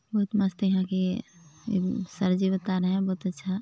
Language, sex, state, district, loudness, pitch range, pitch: Hindi, male, Chhattisgarh, Balrampur, -27 LUFS, 185-200 Hz, 190 Hz